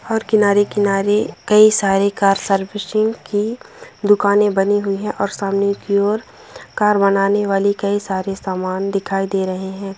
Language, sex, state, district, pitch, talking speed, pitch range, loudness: Hindi, female, Bihar, Begusarai, 200 Hz, 150 wpm, 195-210 Hz, -17 LUFS